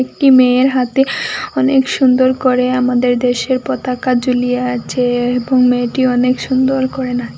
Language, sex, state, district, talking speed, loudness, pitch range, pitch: Bengali, female, Assam, Hailakandi, 140 wpm, -14 LUFS, 250-260 Hz, 255 Hz